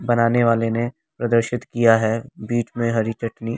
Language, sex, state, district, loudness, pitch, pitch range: Hindi, male, Delhi, New Delhi, -20 LUFS, 115 Hz, 115-120 Hz